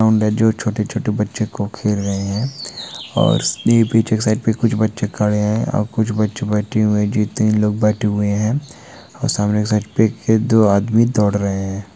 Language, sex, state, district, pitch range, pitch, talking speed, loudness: Hindi, male, West Bengal, Jalpaiguri, 105-110 Hz, 105 Hz, 195 wpm, -18 LUFS